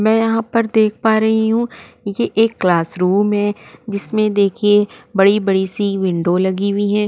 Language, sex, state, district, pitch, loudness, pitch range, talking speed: Hindi, female, Maharashtra, Aurangabad, 205 Hz, -16 LUFS, 195-220 Hz, 170 wpm